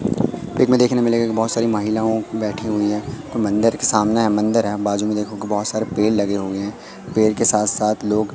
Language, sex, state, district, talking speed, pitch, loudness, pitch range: Hindi, male, Madhya Pradesh, Katni, 215 wpm, 110 Hz, -19 LUFS, 105-115 Hz